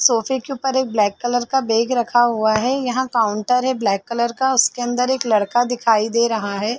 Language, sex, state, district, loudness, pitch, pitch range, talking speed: Hindi, female, Chhattisgarh, Sarguja, -18 LUFS, 240 Hz, 225-255 Hz, 220 wpm